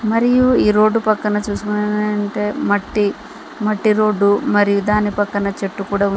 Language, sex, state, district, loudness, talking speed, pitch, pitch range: Telugu, female, Telangana, Mahabubabad, -17 LUFS, 125 wpm, 210 Hz, 205-215 Hz